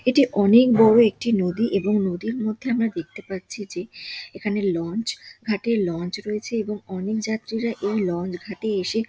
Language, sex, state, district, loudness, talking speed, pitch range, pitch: Bengali, female, West Bengal, Dakshin Dinajpur, -23 LUFS, 160 wpm, 190-225 Hz, 210 Hz